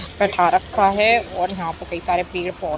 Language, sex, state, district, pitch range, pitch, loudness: Hindi, female, Uttar Pradesh, Jyotiba Phule Nagar, 175-195 Hz, 180 Hz, -20 LUFS